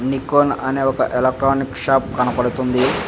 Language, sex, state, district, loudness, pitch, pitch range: Telugu, male, Andhra Pradesh, Visakhapatnam, -18 LUFS, 130 Hz, 125-135 Hz